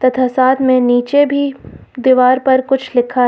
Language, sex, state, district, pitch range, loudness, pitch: Hindi, female, Uttar Pradesh, Lucknow, 250-265 Hz, -13 LUFS, 255 Hz